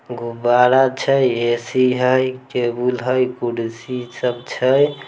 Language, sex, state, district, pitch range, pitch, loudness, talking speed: Maithili, male, Bihar, Samastipur, 120-130 Hz, 125 Hz, -18 LUFS, 130 wpm